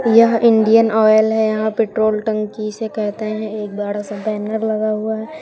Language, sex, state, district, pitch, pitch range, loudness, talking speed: Hindi, female, Uttar Pradesh, Shamli, 215 Hz, 215-220 Hz, -17 LUFS, 190 wpm